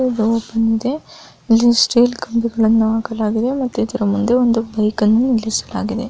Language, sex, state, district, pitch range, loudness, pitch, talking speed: Kannada, female, Karnataka, Chamarajanagar, 220-240 Hz, -17 LUFS, 230 Hz, 90 wpm